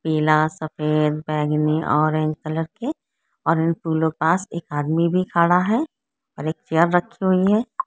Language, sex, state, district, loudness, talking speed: Hindi, female, West Bengal, Kolkata, -21 LUFS, 160 wpm